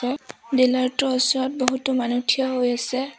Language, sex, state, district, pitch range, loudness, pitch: Assamese, female, Assam, Sonitpur, 250-265 Hz, -22 LUFS, 255 Hz